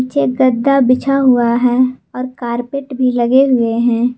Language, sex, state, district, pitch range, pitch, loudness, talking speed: Hindi, female, Jharkhand, Garhwa, 240-265 Hz, 255 Hz, -14 LUFS, 160 wpm